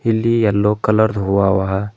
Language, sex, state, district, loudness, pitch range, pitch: Kannada, male, Karnataka, Bidar, -16 LUFS, 100-110 Hz, 105 Hz